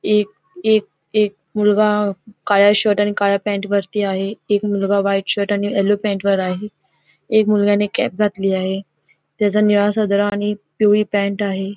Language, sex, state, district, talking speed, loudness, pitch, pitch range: Marathi, female, Goa, North and South Goa, 170 wpm, -18 LUFS, 205 Hz, 195-210 Hz